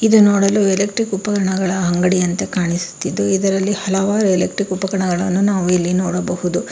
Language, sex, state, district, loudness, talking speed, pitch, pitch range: Kannada, female, Karnataka, Bangalore, -17 LUFS, 115 wpm, 190 Hz, 180-200 Hz